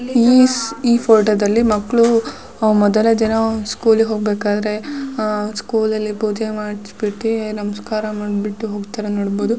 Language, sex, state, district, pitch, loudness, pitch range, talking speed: Kannada, female, Karnataka, Shimoga, 215 Hz, -17 LUFS, 210-225 Hz, 105 wpm